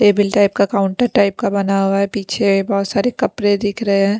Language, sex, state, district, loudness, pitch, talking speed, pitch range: Hindi, female, Punjab, Pathankot, -16 LUFS, 200 Hz, 230 wpm, 195-205 Hz